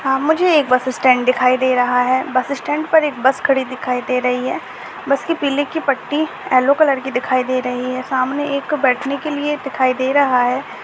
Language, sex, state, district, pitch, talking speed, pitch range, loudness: Hindi, female, Bihar, Purnia, 265 Hz, 220 wpm, 255-285 Hz, -17 LUFS